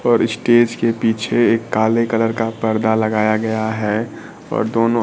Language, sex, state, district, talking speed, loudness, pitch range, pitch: Hindi, male, Bihar, Kaimur, 165 wpm, -17 LUFS, 110-115 Hz, 115 Hz